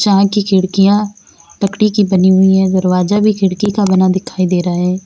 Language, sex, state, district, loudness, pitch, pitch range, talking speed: Hindi, female, Uttar Pradesh, Lalitpur, -12 LUFS, 190 Hz, 185-205 Hz, 200 wpm